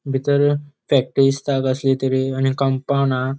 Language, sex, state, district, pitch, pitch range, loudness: Konkani, male, Goa, North and South Goa, 135 Hz, 130-140 Hz, -19 LUFS